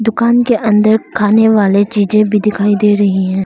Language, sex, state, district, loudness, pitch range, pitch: Hindi, female, Arunachal Pradesh, Longding, -11 LUFS, 205-220 Hz, 210 Hz